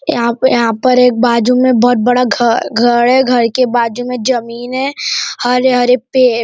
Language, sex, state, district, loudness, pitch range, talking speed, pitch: Hindi, male, Maharashtra, Nagpur, -12 LUFS, 235-255 Hz, 195 wpm, 245 Hz